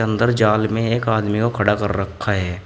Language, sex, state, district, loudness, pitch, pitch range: Hindi, male, Uttar Pradesh, Shamli, -19 LUFS, 110 Hz, 100-115 Hz